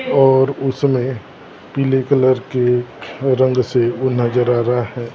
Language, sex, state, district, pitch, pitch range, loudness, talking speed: Hindi, male, Maharashtra, Gondia, 130 Hz, 120-135 Hz, -16 LUFS, 150 wpm